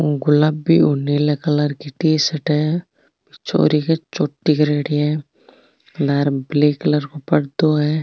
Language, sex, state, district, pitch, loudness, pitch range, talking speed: Marwari, female, Rajasthan, Nagaur, 150 Hz, -18 LUFS, 145-155 Hz, 135 wpm